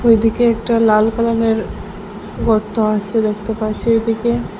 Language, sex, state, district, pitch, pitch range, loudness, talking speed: Bengali, female, Assam, Hailakandi, 225 Hz, 215-230 Hz, -16 LUFS, 115 wpm